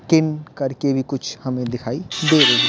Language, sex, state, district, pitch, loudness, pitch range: Hindi, male, Bihar, Patna, 135 Hz, -19 LUFS, 125-150 Hz